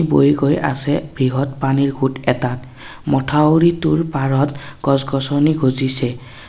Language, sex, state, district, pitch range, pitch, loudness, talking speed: Assamese, male, Assam, Kamrup Metropolitan, 135-145 Hz, 135 Hz, -17 LUFS, 110 wpm